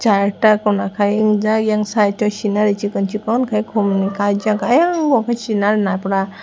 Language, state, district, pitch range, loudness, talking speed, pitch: Kokborok, Tripura, West Tripura, 200-220 Hz, -17 LUFS, 175 wpm, 210 Hz